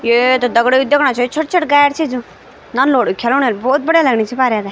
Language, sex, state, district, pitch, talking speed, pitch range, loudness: Garhwali, female, Uttarakhand, Tehri Garhwal, 255 Hz, 265 wpm, 240-285 Hz, -14 LUFS